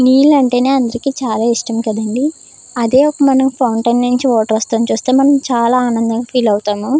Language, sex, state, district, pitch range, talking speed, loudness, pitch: Telugu, female, Andhra Pradesh, Krishna, 230-265 Hz, 155 wpm, -13 LUFS, 245 Hz